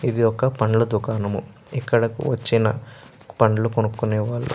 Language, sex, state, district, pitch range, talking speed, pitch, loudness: Telugu, male, Andhra Pradesh, Chittoor, 110-125 Hz, 145 wpm, 115 Hz, -22 LUFS